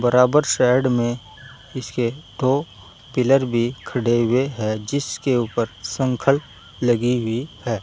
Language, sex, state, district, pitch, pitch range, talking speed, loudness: Hindi, male, Uttar Pradesh, Saharanpur, 125 Hz, 115-135 Hz, 125 wpm, -21 LUFS